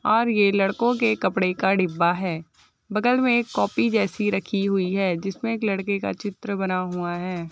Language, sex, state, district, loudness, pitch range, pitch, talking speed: Hindi, female, Bihar, Madhepura, -23 LUFS, 185-220 Hz, 195 Hz, 200 wpm